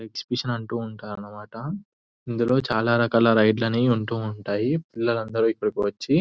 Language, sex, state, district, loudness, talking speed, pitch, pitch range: Telugu, female, Telangana, Nalgonda, -24 LUFS, 155 wpm, 115 Hz, 110-120 Hz